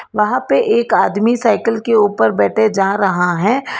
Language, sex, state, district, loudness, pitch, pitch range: Hindi, female, Karnataka, Bangalore, -14 LUFS, 210 Hz, 195-235 Hz